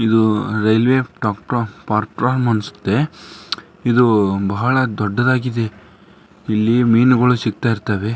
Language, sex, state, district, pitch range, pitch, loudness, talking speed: Kannada, male, Karnataka, Dharwad, 105-125 Hz, 115 Hz, -17 LUFS, 65 wpm